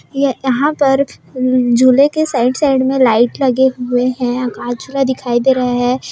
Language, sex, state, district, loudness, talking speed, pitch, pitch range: Hindi, female, Bihar, Bhagalpur, -14 LUFS, 135 wpm, 255 Hz, 245-270 Hz